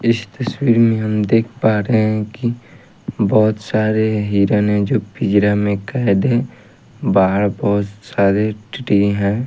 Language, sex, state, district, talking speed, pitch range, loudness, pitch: Hindi, male, Haryana, Rohtak, 145 wpm, 100-115 Hz, -17 LUFS, 105 Hz